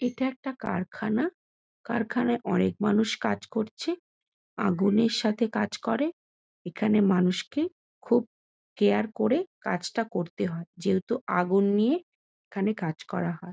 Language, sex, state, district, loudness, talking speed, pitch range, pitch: Bengali, female, West Bengal, Kolkata, -28 LUFS, 120 wpm, 185-240 Hz, 215 Hz